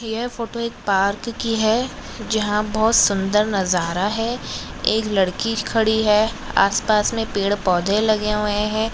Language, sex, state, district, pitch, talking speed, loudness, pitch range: Hindi, female, Maharashtra, Nagpur, 215 Hz, 140 wpm, -20 LUFS, 205-225 Hz